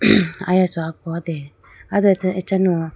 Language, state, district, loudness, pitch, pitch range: Idu Mishmi, Arunachal Pradesh, Lower Dibang Valley, -19 LUFS, 180 Hz, 165-185 Hz